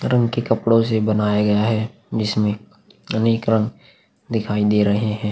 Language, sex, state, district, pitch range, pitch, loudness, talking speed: Hindi, male, Uttar Pradesh, Hamirpur, 105-115 Hz, 110 Hz, -19 LUFS, 160 wpm